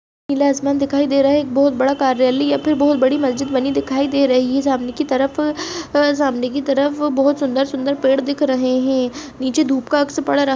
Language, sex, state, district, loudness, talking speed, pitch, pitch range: Hindi, female, Chhattisgarh, Bastar, -17 LUFS, 220 wpm, 275 Hz, 265-285 Hz